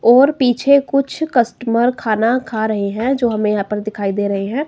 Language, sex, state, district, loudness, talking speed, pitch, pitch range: Hindi, female, Himachal Pradesh, Shimla, -16 LUFS, 205 wpm, 235 Hz, 210-265 Hz